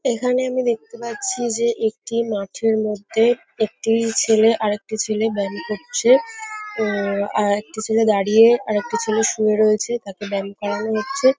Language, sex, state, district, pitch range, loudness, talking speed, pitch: Bengali, female, West Bengal, North 24 Parganas, 210-235 Hz, -20 LUFS, 130 wpm, 220 Hz